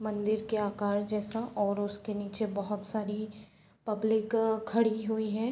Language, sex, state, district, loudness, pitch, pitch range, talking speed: Hindi, female, Bihar, Sitamarhi, -32 LUFS, 215 Hz, 205-220 Hz, 140 wpm